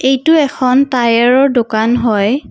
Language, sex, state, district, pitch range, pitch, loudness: Assamese, female, Assam, Kamrup Metropolitan, 235-270 Hz, 255 Hz, -12 LUFS